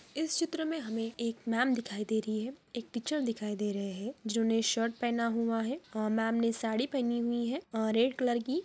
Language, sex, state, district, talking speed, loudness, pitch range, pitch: Hindi, female, Bihar, Araria, 230 wpm, -33 LUFS, 225-250 Hz, 230 Hz